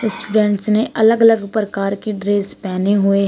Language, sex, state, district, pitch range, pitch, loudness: Hindi, female, Uttar Pradesh, Shamli, 195-220 Hz, 205 Hz, -16 LUFS